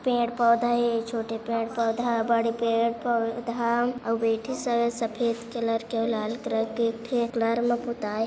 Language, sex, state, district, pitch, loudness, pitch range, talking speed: Hindi, female, Chhattisgarh, Kabirdham, 230 Hz, -26 LUFS, 230-235 Hz, 140 wpm